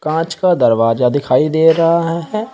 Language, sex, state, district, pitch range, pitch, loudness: Hindi, male, Uttar Pradesh, Shamli, 145-170 Hz, 160 Hz, -14 LUFS